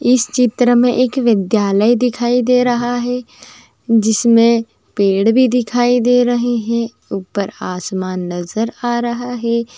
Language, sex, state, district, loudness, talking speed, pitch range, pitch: Magahi, female, Bihar, Gaya, -15 LUFS, 140 wpm, 225-245 Hz, 240 Hz